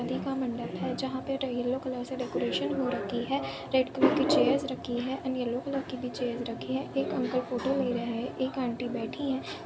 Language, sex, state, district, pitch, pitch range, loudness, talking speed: Hindi, female, Chhattisgarh, Bilaspur, 255 Hz, 245-270 Hz, -31 LUFS, 230 wpm